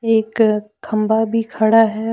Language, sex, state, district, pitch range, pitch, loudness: Hindi, female, Jharkhand, Deoghar, 215-225 Hz, 220 Hz, -17 LUFS